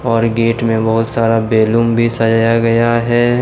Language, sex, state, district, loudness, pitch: Hindi, male, Jharkhand, Deoghar, -13 LUFS, 115 Hz